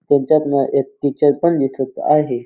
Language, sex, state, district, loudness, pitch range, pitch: Marathi, male, Maharashtra, Dhule, -17 LUFS, 135-150 Hz, 140 Hz